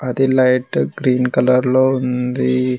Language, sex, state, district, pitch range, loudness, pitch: Telugu, male, Telangana, Mahabubabad, 125-130 Hz, -16 LUFS, 125 Hz